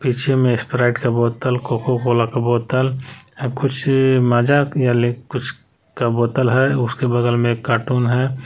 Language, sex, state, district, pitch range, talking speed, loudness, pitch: Hindi, male, Jharkhand, Palamu, 120-130 Hz, 155 wpm, -18 LUFS, 125 Hz